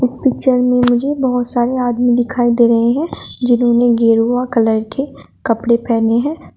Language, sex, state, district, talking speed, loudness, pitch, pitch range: Hindi, female, Uttar Pradesh, Shamli, 165 wpm, -14 LUFS, 245 Hz, 235-255 Hz